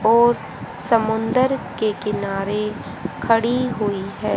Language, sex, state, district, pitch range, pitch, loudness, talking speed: Hindi, female, Haryana, Rohtak, 210-235 Hz, 220 Hz, -21 LUFS, 95 wpm